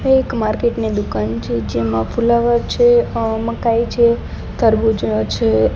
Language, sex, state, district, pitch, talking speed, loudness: Gujarati, female, Gujarat, Gandhinagar, 225 Hz, 135 wpm, -16 LUFS